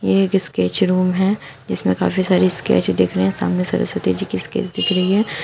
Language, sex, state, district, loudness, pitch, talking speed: Hindi, female, Uttar Pradesh, Shamli, -18 LUFS, 180 Hz, 210 wpm